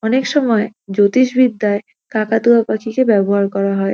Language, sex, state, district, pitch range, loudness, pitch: Bengali, female, West Bengal, North 24 Parganas, 200-240 Hz, -15 LUFS, 215 Hz